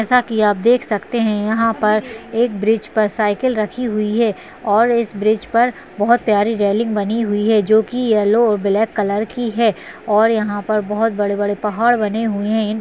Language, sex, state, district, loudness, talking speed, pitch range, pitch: Hindi, female, Uttarakhand, Uttarkashi, -17 LUFS, 205 wpm, 210-230 Hz, 220 Hz